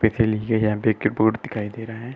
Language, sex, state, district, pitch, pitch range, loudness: Hindi, male, Uttar Pradesh, Muzaffarnagar, 110 Hz, 105-115 Hz, -22 LUFS